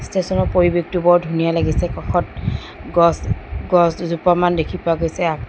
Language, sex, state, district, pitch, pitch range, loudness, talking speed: Assamese, female, Assam, Sonitpur, 170 Hz, 165-175 Hz, -18 LUFS, 130 wpm